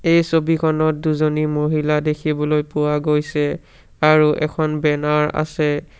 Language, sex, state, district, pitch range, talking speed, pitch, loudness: Assamese, male, Assam, Sonitpur, 150-155 Hz, 110 wpm, 150 Hz, -18 LUFS